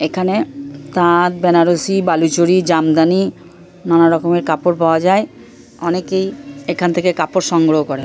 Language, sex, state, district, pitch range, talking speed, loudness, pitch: Bengali, female, West Bengal, Purulia, 160-180 Hz, 125 wpm, -15 LUFS, 170 Hz